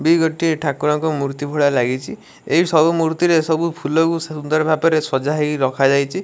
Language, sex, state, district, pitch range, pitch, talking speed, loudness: Odia, male, Odisha, Malkangiri, 145-165 Hz, 155 Hz, 145 wpm, -18 LUFS